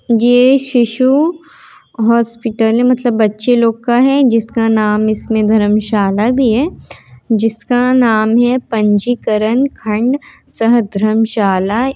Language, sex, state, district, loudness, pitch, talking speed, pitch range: Hindi, female, Bihar, Muzaffarpur, -13 LUFS, 230 Hz, 115 wpm, 215-250 Hz